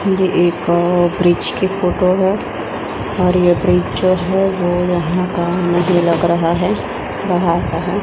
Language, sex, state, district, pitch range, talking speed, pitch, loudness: Hindi, female, Gujarat, Gandhinagar, 175-185 Hz, 165 wpm, 180 Hz, -16 LUFS